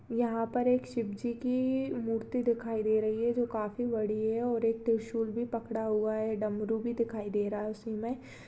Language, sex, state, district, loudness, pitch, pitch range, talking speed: Hindi, female, Uttarakhand, Tehri Garhwal, -32 LUFS, 225 Hz, 220-240 Hz, 210 wpm